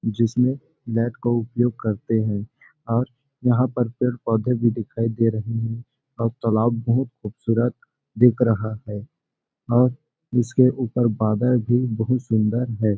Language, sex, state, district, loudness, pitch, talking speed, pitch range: Hindi, male, Chhattisgarh, Balrampur, -22 LUFS, 115 Hz, 140 wpm, 115-125 Hz